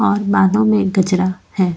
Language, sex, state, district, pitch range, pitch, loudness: Hindi, female, Goa, North and South Goa, 185-205 Hz, 190 Hz, -15 LUFS